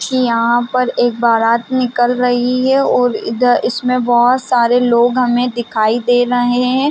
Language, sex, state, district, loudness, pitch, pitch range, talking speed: Hindi, female, Chhattisgarh, Raigarh, -14 LUFS, 245 Hz, 240-250 Hz, 175 wpm